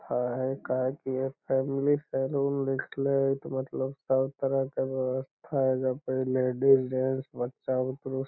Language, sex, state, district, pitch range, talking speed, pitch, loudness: Magahi, male, Bihar, Lakhisarai, 130-135 Hz, 160 wpm, 130 Hz, -29 LUFS